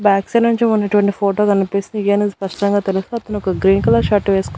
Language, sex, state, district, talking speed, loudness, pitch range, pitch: Telugu, female, Andhra Pradesh, Annamaya, 185 wpm, -16 LUFS, 195-210 Hz, 200 Hz